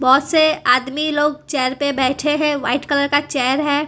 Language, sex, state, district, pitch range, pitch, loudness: Hindi, female, Gujarat, Valsad, 265-295 Hz, 285 Hz, -17 LUFS